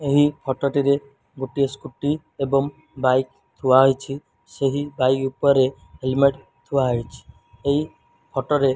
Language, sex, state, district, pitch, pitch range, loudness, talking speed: Odia, male, Odisha, Malkangiri, 135 Hz, 130-140 Hz, -22 LUFS, 130 wpm